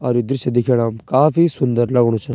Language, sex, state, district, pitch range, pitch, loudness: Garhwali, male, Uttarakhand, Tehri Garhwal, 120-135 Hz, 125 Hz, -17 LUFS